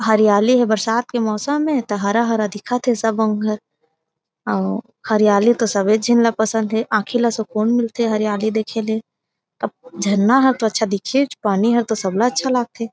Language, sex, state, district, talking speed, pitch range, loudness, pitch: Chhattisgarhi, female, Chhattisgarh, Raigarh, 200 wpm, 210-235 Hz, -18 LUFS, 220 Hz